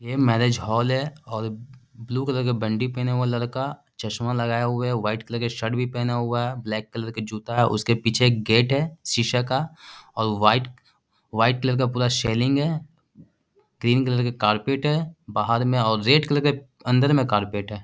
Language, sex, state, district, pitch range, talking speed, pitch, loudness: Hindi, male, Bihar, Gaya, 115-130 Hz, 190 wpm, 120 Hz, -23 LUFS